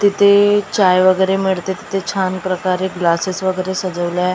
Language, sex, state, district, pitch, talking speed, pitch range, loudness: Marathi, female, Maharashtra, Gondia, 190 Hz, 150 wpm, 185-195 Hz, -16 LUFS